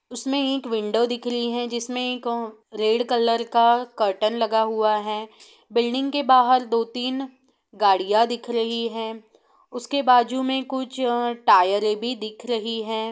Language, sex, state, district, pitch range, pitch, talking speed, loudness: Hindi, female, Bihar, Saran, 220-250 Hz, 235 Hz, 145 wpm, -22 LUFS